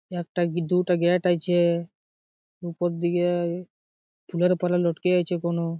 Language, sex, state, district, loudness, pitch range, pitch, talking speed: Bengali, male, West Bengal, Jhargram, -24 LUFS, 170-180 Hz, 175 Hz, 125 wpm